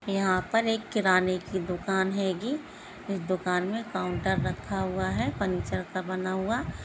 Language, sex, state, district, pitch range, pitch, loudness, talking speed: Hindi, female, Bihar, Jahanabad, 185-200 Hz, 185 Hz, -29 LUFS, 165 wpm